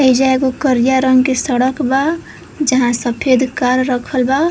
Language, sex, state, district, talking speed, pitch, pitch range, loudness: Bhojpuri, female, Uttar Pradesh, Varanasi, 160 wpm, 260 Hz, 255-265 Hz, -14 LUFS